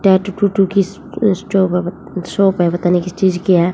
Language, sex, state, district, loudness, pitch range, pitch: Hindi, female, Haryana, Jhajjar, -16 LUFS, 180-195 Hz, 190 Hz